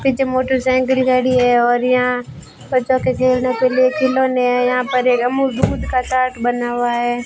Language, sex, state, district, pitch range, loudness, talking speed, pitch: Hindi, female, Rajasthan, Bikaner, 245-255 Hz, -16 LUFS, 190 wpm, 255 Hz